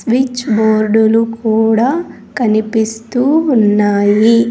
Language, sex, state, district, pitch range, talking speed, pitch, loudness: Telugu, female, Andhra Pradesh, Sri Satya Sai, 215-240 Hz, 80 wpm, 225 Hz, -13 LUFS